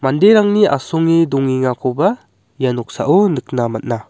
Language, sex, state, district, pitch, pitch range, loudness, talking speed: Garo, male, Meghalaya, West Garo Hills, 130 Hz, 120-165 Hz, -15 LUFS, 105 wpm